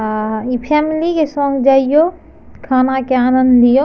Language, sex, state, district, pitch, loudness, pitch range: Maithili, female, Bihar, Madhepura, 265 Hz, -14 LUFS, 250-300 Hz